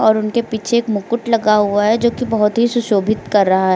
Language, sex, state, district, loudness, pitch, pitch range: Hindi, female, Uttar Pradesh, Lucknow, -16 LUFS, 215 Hz, 205-235 Hz